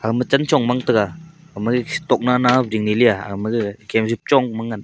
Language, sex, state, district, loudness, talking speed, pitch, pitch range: Wancho, male, Arunachal Pradesh, Longding, -19 LUFS, 175 wpm, 120 Hz, 110-130 Hz